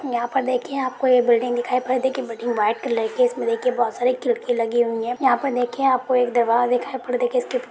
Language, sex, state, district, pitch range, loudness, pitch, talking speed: Hindi, female, Jharkhand, Jamtara, 240-255 Hz, -21 LUFS, 245 Hz, 255 wpm